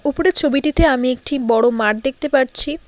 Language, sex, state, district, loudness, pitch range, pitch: Bengali, female, West Bengal, Alipurduar, -16 LUFS, 250-300 Hz, 275 Hz